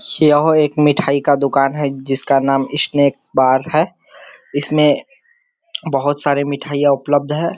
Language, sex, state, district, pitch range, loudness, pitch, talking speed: Hindi, male, Bihar, Kishanganj, 140-160 Hz, -16 LUFS, 145 Hz, 135 wpm